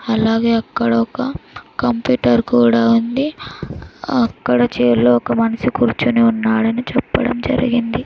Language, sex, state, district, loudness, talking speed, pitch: Telugu, female, Andhra Pradesh, Sri Satya Sai, -16 LUFS, 110 wpm, 225 Hz